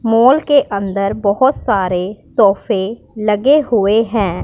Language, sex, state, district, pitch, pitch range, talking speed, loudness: Hindi, female, Punjab, Pathankot, 215 Hz, 200-250 Hz, 120 wpm, -14 LUFS